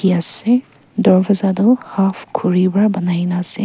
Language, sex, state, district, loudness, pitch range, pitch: Nagamese, female, Nagaland, Kohima, -16 LUFS, 180-210 Hz, 195 Hz